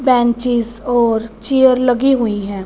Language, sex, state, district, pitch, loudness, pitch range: Hindi, female, Punjab, Fazilka, 240 Hz, -15 LUFS, 225-250 Hz